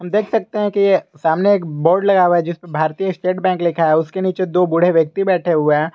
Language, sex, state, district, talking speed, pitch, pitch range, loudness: Hindi, male, Jharkhand, Garhwa, 250 wpm, 180 Hz, 165-190 Hz, -16 LUFS